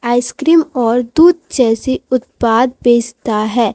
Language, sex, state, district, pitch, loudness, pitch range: Hindi, female, Chhattisgarh, Raipur, 245 Hz, -13 LUFS, 235-265 Hz